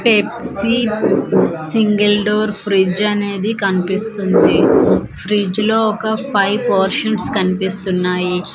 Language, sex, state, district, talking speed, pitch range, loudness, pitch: Telugu, female, Andhra Pradesh, Manyam, 85 wpm, 195-220 Hz, -16 LUFS, 205 Hz